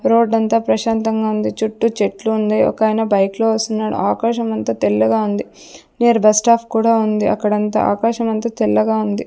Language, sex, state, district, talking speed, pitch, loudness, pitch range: Telugu, female, Andhra Pradesh, Sri Satya Sai, 160 wpm, 220 Hz, -16 LUFS, 210-230 Hz